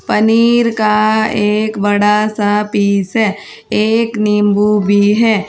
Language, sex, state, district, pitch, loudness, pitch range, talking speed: Hindi, female, Uttar Pradesh, Saharanpur, 210 Hz, -13 LUFS, 205-220 Hz, 120 wpm